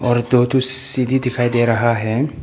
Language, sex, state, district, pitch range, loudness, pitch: Hindi, male, Arunachal Pradesh, Papum Pare, 120-130 Hz, -15 LUFS, 125 Hz